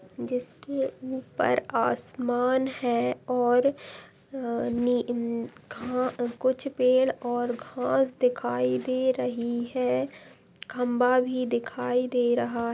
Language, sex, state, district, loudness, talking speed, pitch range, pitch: Hindi, female, Bihar, Lakhisarai, -27 LUFS, 105 wpm, 240-255 Hz, 245 Hz